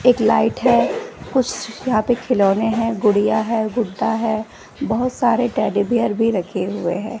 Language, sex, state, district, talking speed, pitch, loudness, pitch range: Hindi, female, Bihar, West Champaran, 165 wpm, 225 Hz, -19 LUFS, 210-240 Hz